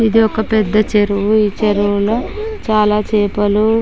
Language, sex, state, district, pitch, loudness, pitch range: Telugu, female, Andhra Pradesh, Chittoor, 215 Hz, -15 LUFS, 205-220 Hz